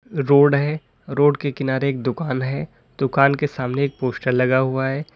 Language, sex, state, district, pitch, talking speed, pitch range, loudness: Hindi, male, Uttar Pradesh, Lalitpur, 135 Hz, 185 wpm, 130-140 Hz, -20 LUFS